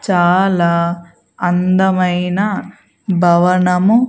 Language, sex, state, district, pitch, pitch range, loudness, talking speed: Telugu, female, Andhra Pradesh, Sri Satya Sai, 180 Hz, 175-190 Hz, -14 LUFS, 45 wpm